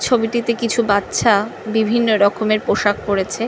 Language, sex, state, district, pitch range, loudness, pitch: Bengali, female, West Bengal, North 24 Parganas, 205-235 Hz, -17 LUFS, 220 Hz